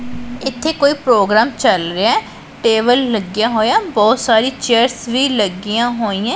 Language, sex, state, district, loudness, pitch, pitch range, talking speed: Punjabi, female, Punjab, Pathankot, -15 LUFS, 235 Hz, 220-250 Hz, 130 wpm